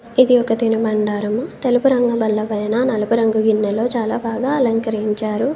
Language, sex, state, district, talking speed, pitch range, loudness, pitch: Telugu, female, Telangana, Komaram Bheem, 140 wpm, 215-245 Hz, -18 LUFS, 225 Hz